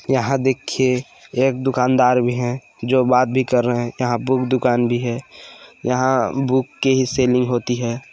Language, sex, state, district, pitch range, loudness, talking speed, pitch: Hindi, male, Chhattisgarh, Balrampur, 120-130 Hz, -19 LUFS, 175 wpm, 125 Hz